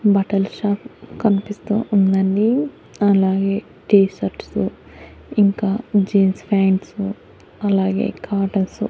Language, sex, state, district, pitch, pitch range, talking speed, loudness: Telugu, female, Andhra Pradesh, Annamaya, 200 Hz, 195-210 Hz, 80 wpm, -19 LUFS